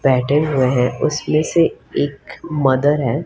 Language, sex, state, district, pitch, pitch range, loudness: Hindi, female, Maharashtra, Mumbai Suburban, 145 Hz, 130-150 Hz, -17 LUFS